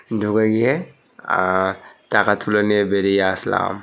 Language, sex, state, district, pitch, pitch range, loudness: Bengali, male, West Bengal, North 24 Parganas, 105 Hz, 95-105 Hz, -19 LUFS